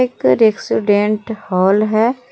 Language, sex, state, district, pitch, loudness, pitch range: Hindi, female, Jharkhand, Palamu, 215 Hz, -15 LUFS, 205-225 Hz